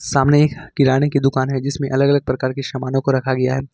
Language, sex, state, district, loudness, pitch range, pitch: Hindi, male, Jharkhand, Ranchi, -18 LUFS, 130-140 Hz, 135 Hz